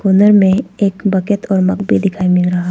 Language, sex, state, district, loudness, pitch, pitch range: Hindi, female, Arunachal Pradesh, Papum Pare, -13 LUFS, 195 Hz, 185-200 Hz